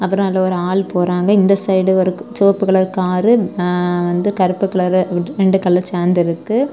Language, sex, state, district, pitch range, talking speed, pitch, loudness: Tamil, female, Tamil Nadu, Kanyakumari, 180-195 Hz, 140 wpm, 185 Hz, -15 LUFS